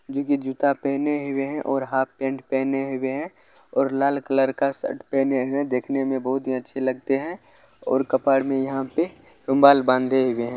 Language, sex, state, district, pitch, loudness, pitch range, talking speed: Hindi, male, Bihar, Jamui, 135 Hz, -23 LUFS, 130-140 Hz, 205 wpm